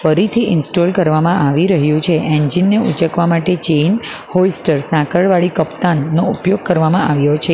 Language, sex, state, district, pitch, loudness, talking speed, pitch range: Gujarati, female, Gujarat, Valsad, 170 Hz, -14 LUFS, 150 wpm, 155-180 Hz